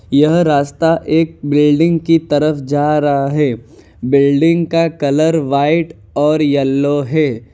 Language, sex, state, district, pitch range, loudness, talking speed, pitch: Hindi, male, Gujarat, Valsad, 140-160 Hz, -14 LUFS, 125 wpm, 150 Hz